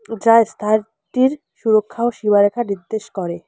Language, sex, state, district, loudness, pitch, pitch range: Bengali, female, West Bengal, Alipurduar, -18 LUFS, 220 Hz, 205-230 Hz